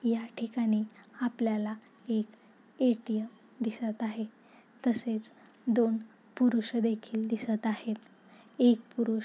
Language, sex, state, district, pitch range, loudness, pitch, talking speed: Marathi, female, Maharashtra, Nagpur, 220-235 Hz, -32 LUFS, 225 Hz, 95 wpm